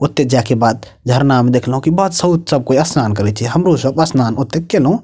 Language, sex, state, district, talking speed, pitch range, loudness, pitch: Maithili, male, Bihar, Purnia, 200 wpm, 125-160 Hz, -14 LUFS, 135 Hz